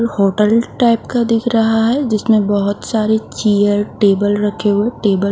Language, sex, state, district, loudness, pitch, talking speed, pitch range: Hindi, female, Haryana, Rohtak, -15 LUFS, 215 Hz, 170 wpm, 205-230 Hz